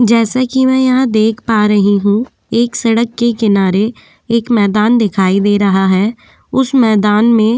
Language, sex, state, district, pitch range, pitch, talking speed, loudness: Hindi, female, Goa, North and South Goa, 205-240 Hz, 225 Hz, 175 wpm, -12 LUFS